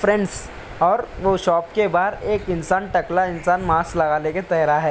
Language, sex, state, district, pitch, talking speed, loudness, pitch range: Hindi, male, Bihar, Samastipur, 180 Hz, 185 wpm, -20 LUFS, 165-190 Hz